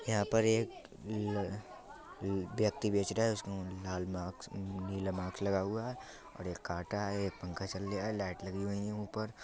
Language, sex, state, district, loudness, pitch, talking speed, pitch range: Bundeli, male, Uttar Pradesh, Budaun, -37 LUFS, 100 Hz, 195 wpm, 95-105 Hz